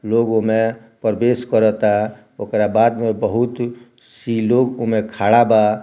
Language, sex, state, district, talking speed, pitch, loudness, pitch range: Bhojpuri, male, Bihar, Muzaffarpur, 145 wpm, 115 Hz, -17 LUFS, 110-120 Hz